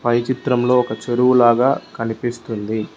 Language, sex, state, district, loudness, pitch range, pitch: Telugu, male, Telangana, Mahabubabad, -18 LUFS, 115-125 Hz, 120 Hz